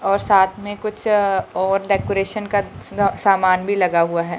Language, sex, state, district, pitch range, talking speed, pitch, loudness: Hindi, female, Punjab, Fazilka, 190-205 Hz, 165 wpm, 195 Hz, -19 LUFS